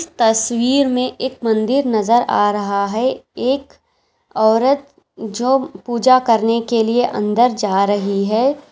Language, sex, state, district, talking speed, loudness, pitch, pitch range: Hindi, female, Maharashtra, Aurangabad, 130 wpm, -16 LUFS, 235 Hz, 220-255 Hz